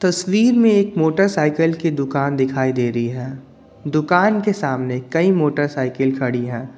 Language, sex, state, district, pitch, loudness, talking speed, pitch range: Hindi, male, Jharkhand, Ranchi, 145 Hz, -18 LUFS, 150 wpm, 130-180 Hz